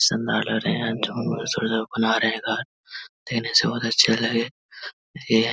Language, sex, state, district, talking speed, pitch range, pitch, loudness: Hindi, male, Bihar, Vaishali, 130 wpm, 110-115 Hz, 115 Hz, -22 LUFS